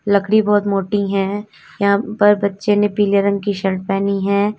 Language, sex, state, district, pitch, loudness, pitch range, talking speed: Hindi, female, Uttar Pradesh, Lalitpur, 200 Hz, -17 LUFS, 200-205 Hz, 185 wpm